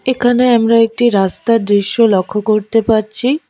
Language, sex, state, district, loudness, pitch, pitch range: Bengali, female, West Bengal, Alipurduar, -13 LUFS, 225 Hz, 210-240 Hz